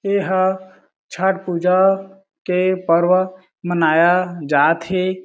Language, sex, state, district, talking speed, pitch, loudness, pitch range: Chhattisgarhi, male, Chhattisgarh, Jashpur, 105 wpm, 185 Hz, -17 LUFS, 175-190 Hz